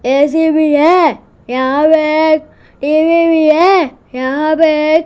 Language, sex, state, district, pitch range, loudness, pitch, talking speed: Hindi, female, Gujarat, Gandhinagar, 290-320 Hz, -11 LUFS, 310 Hz, 140 wpm